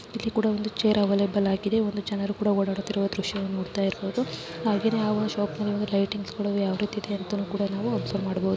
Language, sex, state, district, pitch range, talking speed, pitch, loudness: Kannada, female, Karnataka, Chamarajanagar, 195-210 Hz, 70 wpm, 205 Hz, -27 LUFS